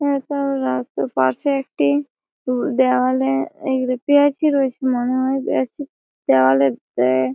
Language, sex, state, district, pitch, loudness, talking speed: Bengali, female, West Bengal, Malda, 260 Hz, -19 LUFS, 120 wpm